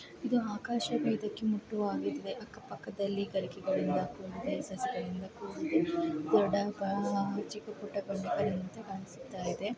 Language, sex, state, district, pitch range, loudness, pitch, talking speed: Kannada, female, Karnataka, Chamarajanagar, 195-225 Hz, -34 LUFS, 205 Hz, 30 wpm